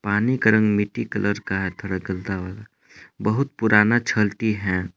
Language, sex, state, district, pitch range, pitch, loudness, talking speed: Hindi, male, Jharkhand, Palamu, 95-110 Hz, 105 Hz, -22 LUFS, 170 wpm